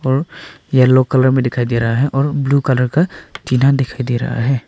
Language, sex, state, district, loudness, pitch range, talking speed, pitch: Hindi, male, Arunachal Pradesh, Papum Pare, -15 LUFS, 125-140 Hz, 215 wpm, 130 Hz